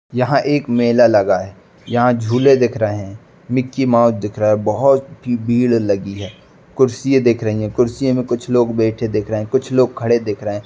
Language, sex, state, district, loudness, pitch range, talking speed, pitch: Hindi, male, Uttar Pradesh, Budaun, -16 LUFS, 110-130 Hz, 210 wpm, 120 Hz